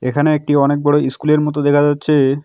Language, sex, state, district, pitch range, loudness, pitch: Bengali, male, West Bengal, Alipurduar, 145-150 Hz, -15 LUFS, 145 Hz